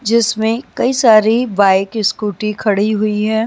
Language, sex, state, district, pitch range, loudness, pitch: Hindi, female, Maharashtra, Mumbai Suburban, 210-225 Hz, -14 LUFS, 215 Hz